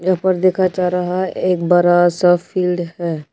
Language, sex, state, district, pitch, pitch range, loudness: Hindi, male, Tripura, West Tripura, 180 Hz, 175-185 Hz, -16 LUFS